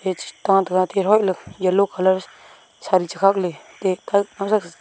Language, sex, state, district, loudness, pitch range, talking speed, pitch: Wancho, female, Arunachal Pradesh, Longding, -20 LUFS, 185-200 Hz, 110 wpm, 190 Hz